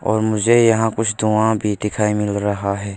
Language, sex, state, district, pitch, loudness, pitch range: Hindi, male, Arunachal Pradesh, Longding, 105 Hz, -17 LUFS, 105-110 Hz